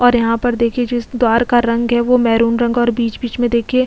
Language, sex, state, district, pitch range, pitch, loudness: Hindi, female, Goa, North and South Goa, 235-245 Hz, 240 Hz, -15 LUFS